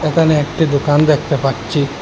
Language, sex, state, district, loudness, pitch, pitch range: Bengali, male, Assam, Hailakandi, -15 LUFS, 145 Hz, 140-155 Hz